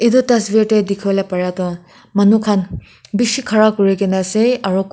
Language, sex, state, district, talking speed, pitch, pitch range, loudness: Nagamese, female, Nagaland, Kohima, 180 wpm, 200 Hz, 190-220 Hz, -15 LUFS